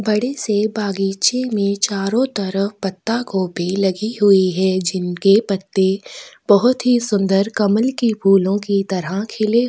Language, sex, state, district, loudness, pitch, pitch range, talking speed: Hindi, female, Chhattisgarh, Kabirdham, -18 LUFS, 200 Hz, 195-220 Hz, 140 wpm